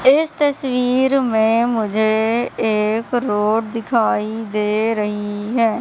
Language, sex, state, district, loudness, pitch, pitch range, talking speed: Hindi, male, Madhya Pradesh, Katni, -18 LUFS, 225 Hz, 215-245 Hz, 105 wpm